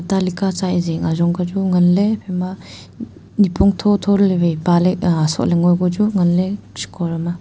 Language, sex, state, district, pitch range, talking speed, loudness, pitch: Wancho, female, Arunachal Pradesh, Longding, 175-195 Hz, 195 wpm, -17 LUFS, 180 Hz